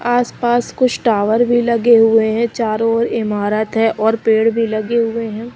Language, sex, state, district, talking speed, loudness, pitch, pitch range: Hindi, female, Chandigarh, Chandigarh, 185 wpm, -15 LUFS, 230 Hz, 220-235 Hz